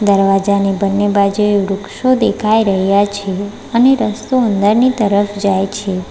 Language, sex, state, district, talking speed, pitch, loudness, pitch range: Gujarati, female, Gujarat, Valsad, 130 wpm, 200 Hz, -14 LUFS, 195-215 Hz